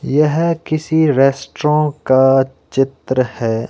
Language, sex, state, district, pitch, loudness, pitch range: Hindi, male, Himachal Pradesh, Shimla, 135 Hz, -15 LUFS, 130-150 Hz